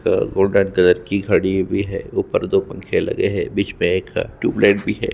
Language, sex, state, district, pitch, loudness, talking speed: Hindi, male, Chhattisgarh, Sukma, 100 Hz, -19 LUFS, 245 wpm